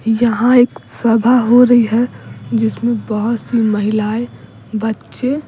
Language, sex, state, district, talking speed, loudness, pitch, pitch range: Hindi, female, Bihar, Patna, 120 wpm, -14 LUFS, 230 Hz, 220-245 Hz